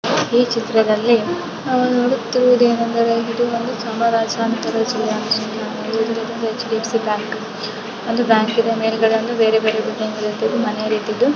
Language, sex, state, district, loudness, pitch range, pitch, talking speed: Kannada, female, Karnataka, Chamarajanagar, -18 LUFS, 220-235 Hz, 225 Hz, 105 wpm